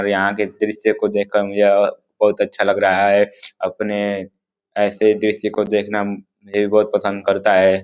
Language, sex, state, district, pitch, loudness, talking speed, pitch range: Hindi, male, Uttar Pradesh, Deoria, 105 Hz, -18 LUFS, 175 wpm, 100-105 Hz